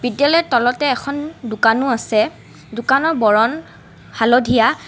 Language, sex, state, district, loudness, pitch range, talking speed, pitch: Assamese, female, Assam, Kamrup Metropolitan, -16 LUFS, 225-280 Hz, 100 wpm, 245 Hz